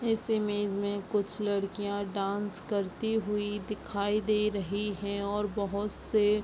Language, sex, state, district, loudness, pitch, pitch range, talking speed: Hindi, female, Bihar, Bhagalpur, -31 LUFS, 205 Hz, 200-210 Hz, 150 wpm